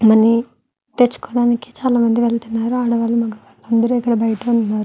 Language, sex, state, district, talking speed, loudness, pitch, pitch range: Telugu, female, Andhra Pradesh, Guntur, 135 wpm, -17 LUFS, 230 Hz, 225-240 Hz